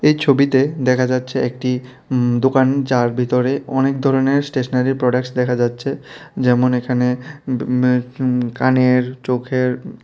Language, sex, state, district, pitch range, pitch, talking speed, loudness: Bengali, male, Tripura, West Tripura, 125-135 Hz, 125 Hz, 130 wpm, -17 LUFS